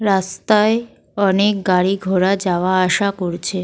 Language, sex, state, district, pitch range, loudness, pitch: Bengali, female, West Bengal, North 24 Parganas, 185-200 Hz, -17 LUFS, 190 Hz